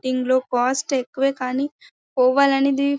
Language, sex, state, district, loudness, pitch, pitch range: Telugu, female, Karnataka, Bellary, -20 LUFS, 265 Hz, 255-275 Hz